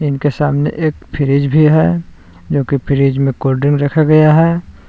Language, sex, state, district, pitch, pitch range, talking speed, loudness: Hindi, male, Jharkhand, Palamu, 145 Hz, 140-155 Hz, 170 wpm, -13 LUFS